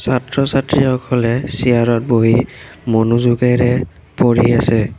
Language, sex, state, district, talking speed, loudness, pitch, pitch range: Assamese, male, Assam, Kamrup Metropolitan, 95 wpm, -15 LUFS, 120 Hz, 115-130 Hz